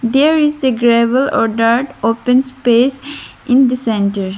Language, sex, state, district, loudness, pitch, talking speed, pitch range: English, female, Arunachal Pradesh, Lower Dibang Valley, -14 LUFS, 250 Hz, 150 wpm, 230-265 Hz